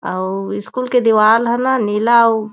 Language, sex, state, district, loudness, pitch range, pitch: Chhattisgarhi, female, Chhattisgarh, Raigarh, -15 LUFS, 205-235 Hz, 220 Hz